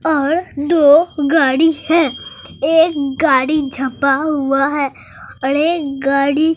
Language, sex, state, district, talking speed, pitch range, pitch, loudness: Hindi, male, Bihar, Katihar, 110 wpm, 275-320 Hz, 290 Hz, -15 LUFS